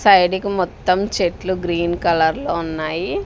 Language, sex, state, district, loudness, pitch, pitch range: Telugu, female, Andhra Pradesh, Sri Satya Sai, -19 LUFS, 175 Hz, 170-190 Hz